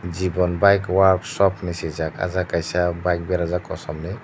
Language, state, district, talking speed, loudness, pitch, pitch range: Kokborok, Tripura, Dhalai, 185 wpm, -21 LUFS, 90 Hz, 85-95 Hz